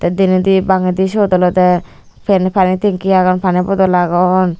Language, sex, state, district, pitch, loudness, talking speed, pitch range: Chakma, female, Tripura, Unakoti, 185 Hz, -13 LUFS, 145 wpm, 180-190 Hz